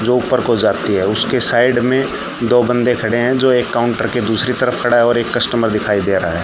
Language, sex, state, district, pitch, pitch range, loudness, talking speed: Hindi, male, Haryana, Charkhi Dadri, 120 Hz, 115-125 Hz, -15 LUFS, 250 wpm